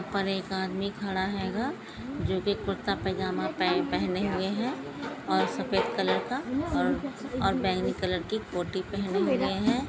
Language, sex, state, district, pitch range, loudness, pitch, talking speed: Hindi, female, Goa, North and South Goa, 190-245 Hz, -30 LUFS, 195 Hz, 140 wpm